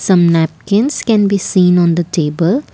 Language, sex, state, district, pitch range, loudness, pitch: English, female, Assam, Kamrup Metropolitan, 170-205 Hz, -13 LUFS, 180 Hz